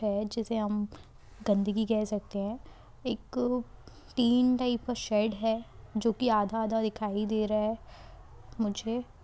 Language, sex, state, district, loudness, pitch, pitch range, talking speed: Hindi, female, Jharkhand, Jamtara, -31 LUFS, 220 Hz, 210-235 Hz, 145 wpm